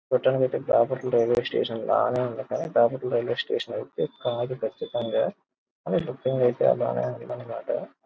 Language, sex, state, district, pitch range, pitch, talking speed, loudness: Telugu, male, Andhra Pradesh, Krishna, 120-130 Hz, 125 Hz, 65 wpm, -26 LUFS